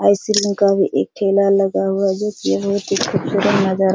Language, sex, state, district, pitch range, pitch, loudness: Hindi, female, Bihar, Supaul, 195-200 Hz, 195 Hz, -17 LUFS